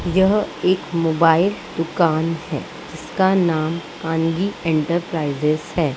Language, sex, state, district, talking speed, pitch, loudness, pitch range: Hindi, female, Maharashtra, Gondia, 100 wpm, 165 Hz, -20 LUFS, 160-180 Hz